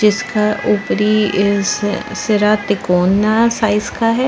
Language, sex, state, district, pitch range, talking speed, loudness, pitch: Hindi, female, Chhattisgarh, Sarguja, 205-220 Hz, 110 wpm, -15 LUFS, 210 Hz